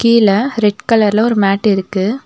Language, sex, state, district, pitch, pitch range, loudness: Tamil, female, Tamil Nadu, Nilgiris, 210 Hz, 200-230 Hz, -13 LUFS